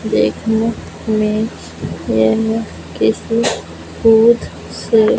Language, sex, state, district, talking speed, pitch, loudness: Hindi, female, Punjab, Fazilka, 70 wpm, 220 Hz, -16 LUFS